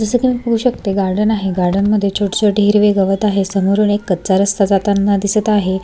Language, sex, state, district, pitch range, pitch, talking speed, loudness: Marathi, female, Maharashtra, Sindhudurg, 195-210 Hz, 200 Hz, 205 wpm, -15 LUFS